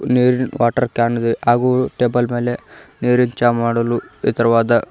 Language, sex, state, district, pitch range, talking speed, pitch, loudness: Kannada, male, Karnataka, Koppal, 115-125 Hz, 145 wpm, 120 Hz, -17 LUFS